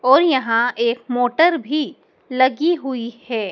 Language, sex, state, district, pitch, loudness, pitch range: Hindi, male, Madhya Pradesh, Dhar, 255 Hz, -18 LUFS, 235-300 Hz